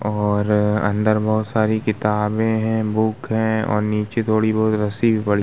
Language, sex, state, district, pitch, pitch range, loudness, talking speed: Hindi, male, Bihar, Vaishali, 110 Hz, 105-110 Hz, -19 LUFS, 175 wpm